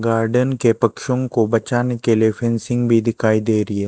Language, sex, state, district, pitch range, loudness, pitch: Hindi, male, Chhattisgarh, Raipur, 110-120 Hz, -18 LUFS, 115 Hz